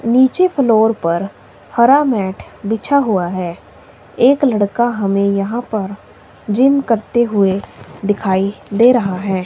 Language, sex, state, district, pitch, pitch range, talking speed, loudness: Hindi, female, Himachal Pradesh, Shimla, 215 Hz, 195-245 Hz, 125 wpm, -15 LUFS